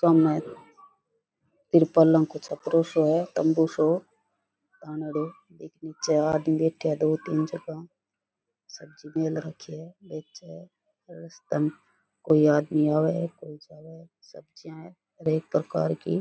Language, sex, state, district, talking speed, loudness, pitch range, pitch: Rajasthani, female, Rajasthan, Churu, 135 wpm, -25 LUFS, 155-170 Hz, 160 Hz